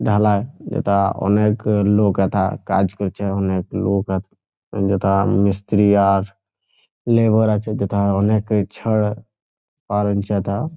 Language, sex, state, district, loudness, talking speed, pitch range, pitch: Bengali, male, West Bengal, Jhargram, -19 LUFS, 110 wpm, 100-105 Hz, 100 Hz